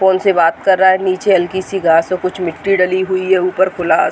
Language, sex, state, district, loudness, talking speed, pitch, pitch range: Hindi, female, Uttar Pradesh, Deoria, -14 LUFS, 260 wpm, 185 Hz, 180-190 Hz